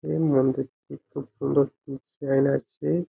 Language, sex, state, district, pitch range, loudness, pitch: Bengali, male, West Bengal, Jhargram, 135-145 Hz, -25 LUFS, 135 Hz